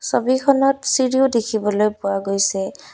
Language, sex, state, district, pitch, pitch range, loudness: Assamese, female, Assam, Kamrup Metropolitan, 230 Hz, 200-265 Hz, -18 LUFS